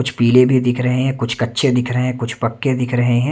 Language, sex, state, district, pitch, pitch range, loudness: Hindi, male, Himachal Pradesh, Shimla, 125 Hz, 120-125 Hz, -17 LUFS